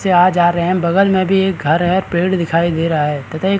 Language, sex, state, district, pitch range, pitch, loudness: Hindi, male, Chhattisgarh, Rajnandgaon, 165-190 Hz, 175 Hz, -15 LUFS